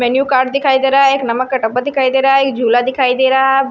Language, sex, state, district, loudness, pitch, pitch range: Hindi, female, Punjab, Kapurthala, -13 LUFS, 265 Hz, 255-270 Hz